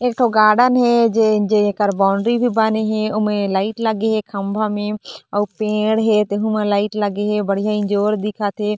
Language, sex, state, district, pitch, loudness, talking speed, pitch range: Chhattisgarhi, female, Chhattisgarh, Korba, 210 Hz, -17 LUFS, 190 wpm, 205-220 Hz